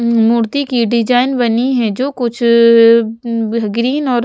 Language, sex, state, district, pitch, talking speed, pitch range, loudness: Hindi, female, Haryana, Jhajjar, 235 Hz, 155 wpm, 230-245 Hz, -13 LUFS